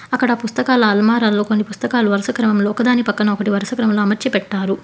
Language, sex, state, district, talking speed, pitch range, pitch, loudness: Telugu, female, Telangana, Hyderabad, 175 wpm, 205-240 Hz, 215 Hz, -17 LUFS